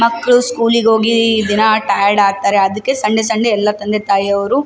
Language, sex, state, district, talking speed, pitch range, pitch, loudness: Kannada, female, Karnataka, Raichur, 165 wpm, 205-230 Hz, 215 Hz, -13 LUFS